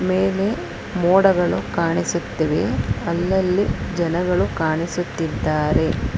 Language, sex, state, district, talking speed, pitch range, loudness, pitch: Kannada, female, Karnataka, Bangalore, 60 wpm, 165-190 Hz, -20 LUFS, 175 Hz